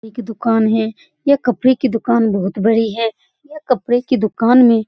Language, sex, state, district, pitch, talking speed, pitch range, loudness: Hindi, female, Bihar, Saran, 230 Hz, 195 wpm, 225-255 Hz, -16 LUFS